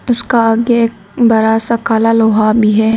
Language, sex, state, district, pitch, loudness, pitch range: Hindi, female, Arunachal Pradesh, Lower Dibang Valley, 225 Hz, -12 LUFS, 220-230 Hz